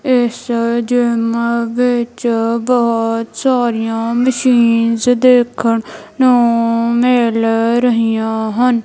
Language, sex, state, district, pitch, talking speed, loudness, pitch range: Punjabi, female, Punjab, Kapurthala, 235 Hz, 75 wpm, -14 LUFS, 230-245 Hz